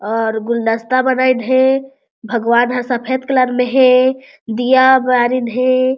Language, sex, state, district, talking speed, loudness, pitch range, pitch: Chhattisgarhi, female, Chhattisgarh, Jashpur, 130 wpm, -14 LUFS, 240-260 Hz, 255 Hz